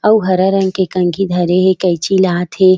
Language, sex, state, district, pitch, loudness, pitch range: Chhattisgarhi, female, Chhattisgarh, Raigarh, 185 Hz, -14 LUFS, 180-190 Hz